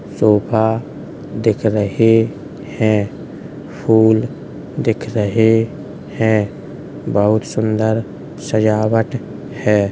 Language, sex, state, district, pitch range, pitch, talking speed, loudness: Hindi, male, Uttar Pradesh, Hamirpur, 105-115 Hz, 110 Hz, 75 wpm, -16 LUFS